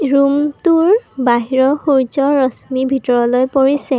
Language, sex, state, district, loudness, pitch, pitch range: Assamese, female, Assam, Kamrup Metropolitan, -14 LUFS, 270 Hz, 260-285 Hz